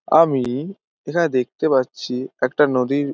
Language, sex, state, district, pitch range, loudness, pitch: Bengali, male, West Bengal, Dakshin Dinajpur, 125-155 Hz, -20 LUFS, 135 Hz